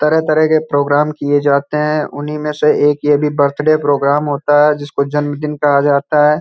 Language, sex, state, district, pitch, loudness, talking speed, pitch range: Hindi, male, Uttar Pradesh, Hamirpur, 150 Hz, -14 LUFS, 195 wpm, 145-150 Hz